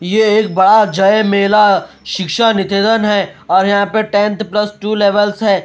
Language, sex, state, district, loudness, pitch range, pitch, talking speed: Hindi, male, Bihar, Katihar, -13 LUFS, 195-215 Hz, 205 Hz, 170 wpm